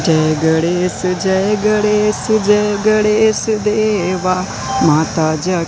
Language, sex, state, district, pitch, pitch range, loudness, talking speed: Hindi, male, Madhya Pradesh, Katni, 190 Hz, 160-210 Hz, -15 LUFS, 95 wpm